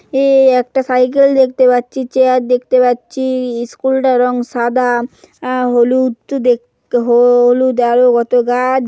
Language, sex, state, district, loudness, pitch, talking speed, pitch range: Bengali, female, West Bengal, Paschim Medinipur, -13 LUFS, 250 Hz, 135 wpm, 245-260 Hz